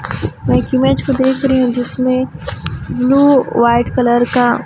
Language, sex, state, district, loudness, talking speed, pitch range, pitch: Hindi, male, Chhattisgarh, Raipur, -14 LUFS, 155 wpm, 245-265 Hz, 255 Hz